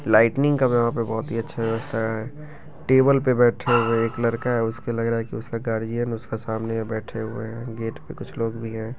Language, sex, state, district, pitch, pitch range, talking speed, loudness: Maithili, male, Bihar, Begusarai, 115 Hz, 115-120 Hz, 225 wpm, -23 LUFS